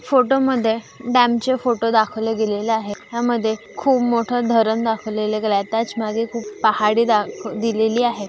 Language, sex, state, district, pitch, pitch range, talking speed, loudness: Marathi, female, Maharashtra, Aurangabad, 225 Hz, 220-240 Hz, 160 wpm, -19 LUFS